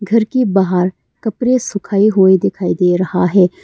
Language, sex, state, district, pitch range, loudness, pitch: Hindi, female, Arunachal Pradesh, Longding, 180-215 Hz, -14 LUFS, 195 Hz